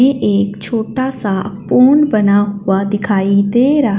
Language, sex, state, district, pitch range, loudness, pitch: Hindi, female, Punjab, Fazilka, 200-255 Hz, -14 LUFS, 205 Hz